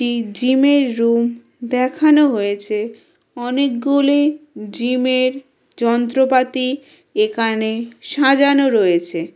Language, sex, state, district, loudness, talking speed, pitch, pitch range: Bengali, female, West Bengal, Kolkata, -17 LUFS, 65 wpm, 250 Hz, 230-275 Hz